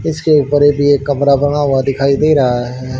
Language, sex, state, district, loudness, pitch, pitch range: Hindi, male, Haryana, Rohtak, -13 LUFS, 140 Hz, 135-145 Hz